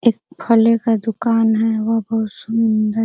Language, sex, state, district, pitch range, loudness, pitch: Hindi, female, Bihar, Araria, 220-230 Hz, -17 LUFS, 225 Hz